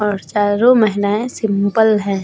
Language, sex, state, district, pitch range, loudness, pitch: Hindi, female, Uttar Pradesh, Hamirpur, 200-220 Hz, -15 LUFS, 210 Hz